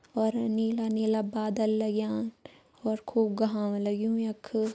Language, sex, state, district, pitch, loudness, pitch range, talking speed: Garhwali, female, Uttarakhand, Uttarkashi, 220 Hz, -30 LUFS, 215-225 Hz, 115 wpm